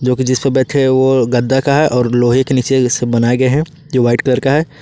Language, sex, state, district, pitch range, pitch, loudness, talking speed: Hindi, male, Jharkhand, Ranchi, 125-135 Hz, 130 Hz, -13 LUFS, 260 wpm